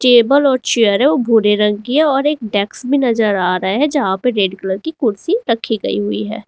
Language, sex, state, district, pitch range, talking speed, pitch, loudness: Hindi, female, Uttar Pradesh, Lalitpur, 200-275 Hz, 250 wpm, 230 Hz, -15 LUFS